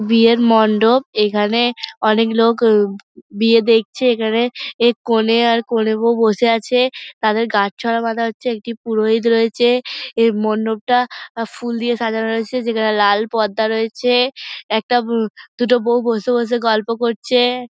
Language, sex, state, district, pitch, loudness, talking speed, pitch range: Bengali, female, West Bengal, Dakshin Dinajpur, 230 Hz, -16 LUFS, 140 wpm, 220-240 Hz